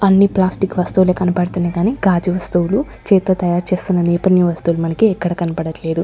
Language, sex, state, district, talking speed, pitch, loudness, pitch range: Telugu, female, Andhra Pradesh, Sri Satya Sai, 150 wpm, 180 Hz, -16 LUFS, 175-190 Hz